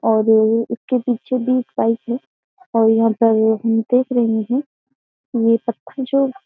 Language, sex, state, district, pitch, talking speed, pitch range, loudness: Hindi, female, Uttar Pradesh, Jyotiba Phule Nagar, 235 Hz, 160 wpm, 225-255 Hz, -18 LUFS